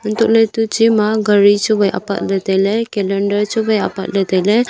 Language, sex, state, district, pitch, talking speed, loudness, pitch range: Wancho, female, Arunachal Pradesh, Longding, 210 Hz, 155 wpm, -15 LUFS, 195-220 Hz